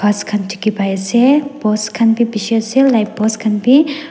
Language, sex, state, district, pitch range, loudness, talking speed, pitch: Nagamese, female, Nagaland, Dimapur, 210-255 Hz, -14 LUFS, 175 wpm, 220 Hz